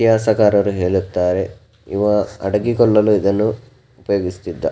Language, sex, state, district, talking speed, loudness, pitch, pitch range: Kannada, male, Karnataka, Dakshina Kannada, 75 wpm, -17 LUFS, 105 Hz, 95-110 Hz